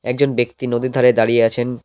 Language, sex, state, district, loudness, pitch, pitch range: Bengali, male, West Bengal, Cooch Behar, -16 LUFS, 120 Hz, 120-125 Hz